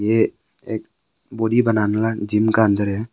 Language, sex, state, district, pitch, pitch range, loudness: Hindi, male, Arunachal Pradesh, Longding, 110 Hz, 105-115 Hz, -20 LUFS